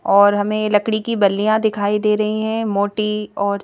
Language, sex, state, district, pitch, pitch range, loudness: Hindi, female, Madhya Pradesh, Bhopal, 210 Hz, 205-215 Hz, -18 LUFS